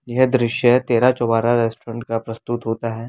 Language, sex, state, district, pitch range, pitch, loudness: Hindi, male, Delhi, New Delhi, 115-120 Hz, 115 Hz, -19 LUFS